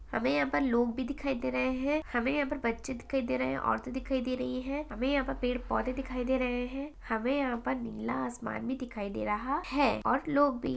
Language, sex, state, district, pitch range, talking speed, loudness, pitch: Hindi, female, Uttar Pradesh, Etah, 240-275 Hz, 250 wpm, -32 LUFS, 255 Hz